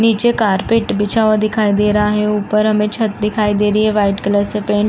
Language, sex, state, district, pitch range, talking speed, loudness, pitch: Hindi, female, Uttar Pradesh, Jalaun, 205-215 Hz, 245 wpm, -15 LUFS, 210 Hz